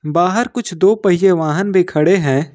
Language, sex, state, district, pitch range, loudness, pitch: Hindi, male, Jharkhand, Ranchi, 155-195 Hz, -14 LUFS, 185 Hz